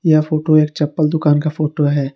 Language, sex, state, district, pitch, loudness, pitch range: Hindi, male, Jharkhand, Garhwa, 155 Hz, -16 LUFS, 150-155 Hz